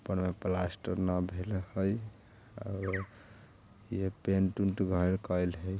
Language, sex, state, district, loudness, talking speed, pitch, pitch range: Bajjika, male, Bihar, Vaishali, -34 LUFS, 135 wpm, 95 Hz, 90-105 Hz